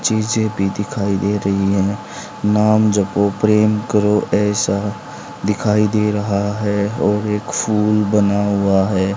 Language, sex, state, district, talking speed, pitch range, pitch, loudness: Hindi, male, Haryana, Charkhi Dadri, 135 wpm, 100-105 Hz, 105 Hz, -17 LUFS